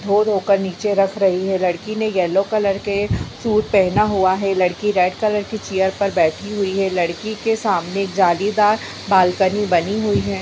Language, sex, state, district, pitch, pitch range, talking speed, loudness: Hindi, female, Bihar, Bhagalpur, 195 Hz, 185-210 Hz, 190 wpm, -18 LUFS